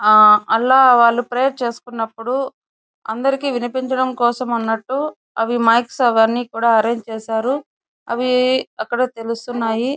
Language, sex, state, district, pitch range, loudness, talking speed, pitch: Telugu, female, Andhra Pradesh, Chittoor, 225-255 Hz, -17 LUFS, 95 wpm, 240 Hz